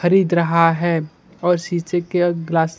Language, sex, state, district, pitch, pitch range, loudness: Hindi, male, Bihar, Kaimur, 175 Hz, 165-175 Hz, -18 LUFS